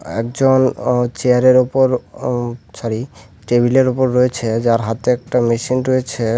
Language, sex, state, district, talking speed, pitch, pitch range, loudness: Bengali, male, West Bengal, Alipurduar, 130 wpm, 125 Hz, 115-130 Hz, -16 LUFS